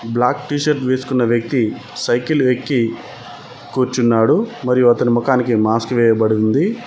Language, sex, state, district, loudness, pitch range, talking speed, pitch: Telugu, male, Telangana, Mahabubabad, -16 LUFS, 115-130 Hz, 115 wpm, 125 Hz